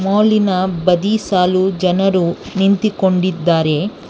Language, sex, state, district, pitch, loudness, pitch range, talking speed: Kannada, female, Karnataka, Bangalore, 190 Hz, -15 LUFS, 180-195 Hz, 90 wpm